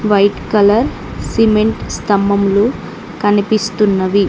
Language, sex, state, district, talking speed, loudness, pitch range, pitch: Telugu, female, Telangana, Mahabubabad, 70 wpm, -14 LUFS, 200-215 Hz, 205 Hz